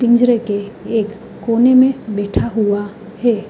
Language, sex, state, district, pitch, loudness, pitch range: Hindi, female, Uttar Pradesh, Hamirpur, 220 Hz, -16 LUFS, 205-240 Hz